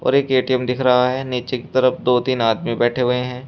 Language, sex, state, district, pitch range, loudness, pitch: Hindi, male, Uttar Pradesh, Shamli, 125-130 Hz, -18 LUFS, 125 Hz